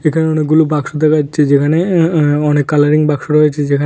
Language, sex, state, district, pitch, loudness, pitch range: Bengali, male, Tripura, West Tripura, 150 Hz, -12 LUFS, 145-155 Hz